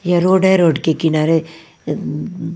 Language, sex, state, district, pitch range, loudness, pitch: Hindi, female, Punjab, Pathankot, 160-175 Hz, -16 LUFS, 165 Hz